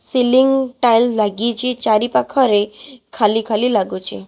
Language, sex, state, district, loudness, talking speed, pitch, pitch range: Odia, female, Odisha, Khordha, -16 LUFS, 100 wpm, 230 Hz, 215-250 Hz